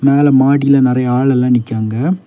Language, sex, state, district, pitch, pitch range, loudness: Tamil, male, Tamil Nadu, Kanyakumari, 130 Hz, 125-140 Hz, -12 LUFS